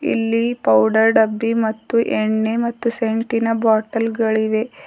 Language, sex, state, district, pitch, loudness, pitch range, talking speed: Kannada, female, Karnataka, Bidar, 225 Hz, -18 LUFS, 220-230 Hz, 110 wpm